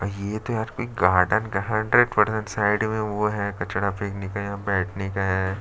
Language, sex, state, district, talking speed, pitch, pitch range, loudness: Hindi, male, Chhattisgarh, Sukma, 215 wpm, 100 Hz, 95-110 Hz, -24 LUFS